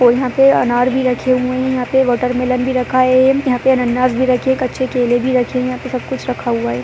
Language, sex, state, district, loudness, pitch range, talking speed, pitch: Hindi, female, Uttar Pradesh, Budaun, -15 LUFS, 250-260 Hz, 280 wpm, 255 Hz